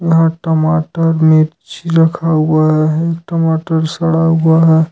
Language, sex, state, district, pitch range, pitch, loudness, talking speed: Hindi, male, Jharkhand, Ranchi, 160-165 Hz, 160 Hz, -13 LUFS, 135 wpm